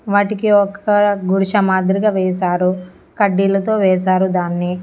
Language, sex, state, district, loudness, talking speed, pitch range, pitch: Telugu, female, Andhra Pradesh, Annamaya, -16 LUFS, 100 wpm, 185-205 Hz, 195 Hz